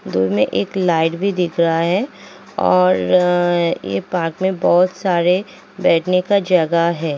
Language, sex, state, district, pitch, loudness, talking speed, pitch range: Hindi, female, Uttar Pradesh, Jalaun, 175 Hz, -17 LUFS, 150 wpm, 160-185 Hz